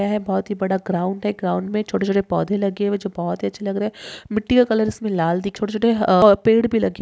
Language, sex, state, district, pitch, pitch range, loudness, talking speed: Hindi, female, Rajasthan, Nagaur, 205 Hz, 190-215 Hz, -20 LUFS, 280 wpm